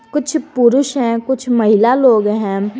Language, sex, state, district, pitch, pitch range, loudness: Hindi, female, Jharkhand, Garhwa, 240 Hz, 220-265 Hz, -14 LUFS